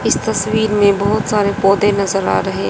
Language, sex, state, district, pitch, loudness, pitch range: Hindi, female, Haryana, Jhajjar, 205 Hz, -15 LUFS, 195-215 Hz